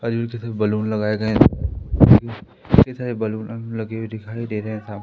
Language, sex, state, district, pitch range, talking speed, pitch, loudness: Hindi, male, Madhya Pradesh, Umaria, 110-115 Hz, 205 wpm, 110 Hz, -20 LUFS